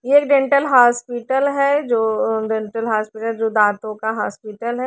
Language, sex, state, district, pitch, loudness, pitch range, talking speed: Hindi, female, Haryana, Rohtak, 230 Hz, -18 LUFS, 220-265 Hz, 150 wpm